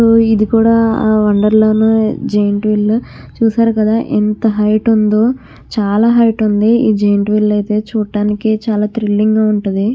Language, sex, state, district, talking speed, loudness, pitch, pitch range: Telugu, female, Andhra Pradesh, Krishna, 145 wpm, -13 LUFS, 215 Hz, 210-225 Hz